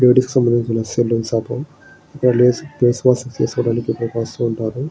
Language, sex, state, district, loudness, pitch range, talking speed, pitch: Telugu, male, Andhra Pradesh, Srikakulam, -18 LUFS, 115-130 Hz, 135 wpm, 120 Hz